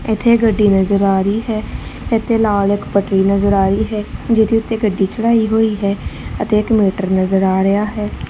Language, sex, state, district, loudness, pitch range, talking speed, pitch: Punjabi, female, Punjab, Kapurthala, -15 LUFS, 195-220 Hz, 195 wpm, 210 Hz